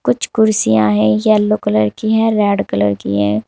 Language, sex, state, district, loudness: Hindi, female, Uttar Pradesh, Saharanpur, -14 LUFS